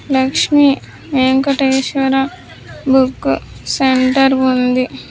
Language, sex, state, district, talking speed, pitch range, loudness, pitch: Telugu, female, Andhra Pradesh, Sri Satya Sai, 60 wpm, 260-270 Hz, -14 LUFS, 265 Hz